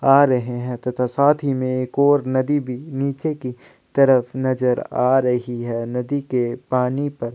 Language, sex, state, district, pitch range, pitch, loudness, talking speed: Hindi, male, Chhattisgarh, Sukma, 125-140 Hz, 130 Hz, -20 LUFS, 195 wpm